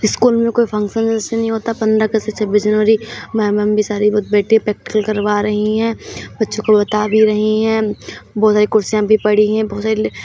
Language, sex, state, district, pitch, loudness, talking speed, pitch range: Hindi, female, Uttar Pradesh, Hamirpur, 215 Hz, -15 LUFS, 225 wpm, 210-220 Hz